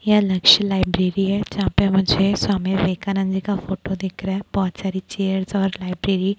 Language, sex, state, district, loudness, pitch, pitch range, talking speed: Hindi, female, Chhattisgarh, Bilaspur, -20 LUFS, 195 Hz, 190-195 Hz, 205 wpm